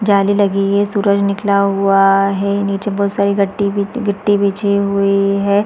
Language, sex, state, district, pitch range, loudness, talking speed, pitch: Hindi, female, Chhattisgarh, Balrampur, 195-200 Hz, -15 LUFS, 150 wpm, 200 Hz